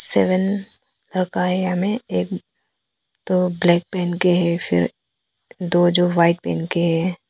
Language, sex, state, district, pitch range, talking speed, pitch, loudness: Hindi, female, Arunachal Pradesh, Papum Pare, 170-185 Hz, 125 wpm, 180 Hz, -20 LUFS